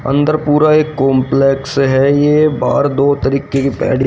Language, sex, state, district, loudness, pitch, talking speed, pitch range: Hindi, male, Haryana, Rohtak, -13 LUFS, 140 Hz, 145 wpm, 135-150 Hz